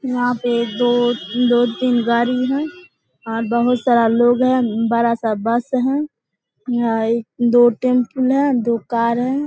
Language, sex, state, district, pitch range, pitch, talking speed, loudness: Hindi, female, Bihar, Vaishali, 235-255 Hz, 240 Hz, 140 wpm, -17 LUFS